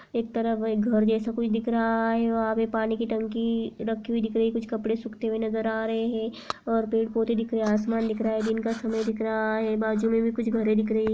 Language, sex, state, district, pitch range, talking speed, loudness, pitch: Hindi, female, Uttar Pradesh, Jalaun, 220-230 Hz, 275 wpm, -26 LUFS, 225 Hz